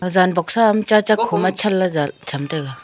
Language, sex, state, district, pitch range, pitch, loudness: Wancho, female, Arunachal Pradesh, Longding, 155-210 Hz, 185 Hz, -18 LUFS